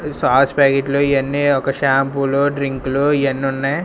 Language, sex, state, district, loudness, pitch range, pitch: Telugu, male, Andhra Pradesh, Sri Satya Sai, -16 LUFS, 135-140 Hz, 140 Hz